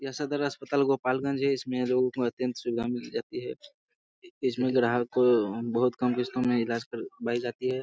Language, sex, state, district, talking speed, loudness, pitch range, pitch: Hindi, male, Bihar, Jamui, 175 wpm, -28 LUFS, 120-140 Hz, 125 Hz